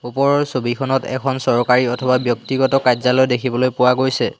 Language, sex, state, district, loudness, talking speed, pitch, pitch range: Assamese, male, Assam, Hailakandi, -17 LUFS, 135 wpm, 130 Hz, 125-135 Hz